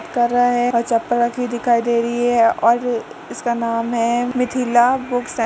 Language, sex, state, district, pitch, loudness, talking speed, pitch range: Hindi, female, Uttar Pradesh, Jalaun, 240 Hz, -18 LUFS, 210 wpm, 235-245 Hz